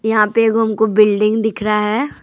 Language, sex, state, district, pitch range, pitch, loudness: Hindi, female, Jharkhand, Deoghar, 210-225 Hz, 220 Hz, -15 LUFS